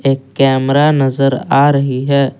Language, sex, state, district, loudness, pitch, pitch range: Hindi, male, Assam, Kamrup Metropolitan, -13 LUFS, 135 Hz, 135-140 Hz